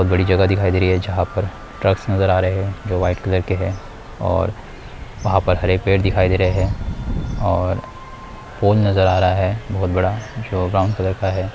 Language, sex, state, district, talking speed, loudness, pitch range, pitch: Hindi, male, Bihar, Muzaffarpur, 215 wpm, -19 LUFS, 90-100 Hz, 95 Hz